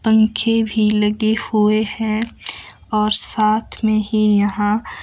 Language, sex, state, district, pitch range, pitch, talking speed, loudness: Hindi, male, Himachal Pradesh, Shimla, 210-220 Hz, 215 Hz, 120 wpm, -17 LUFS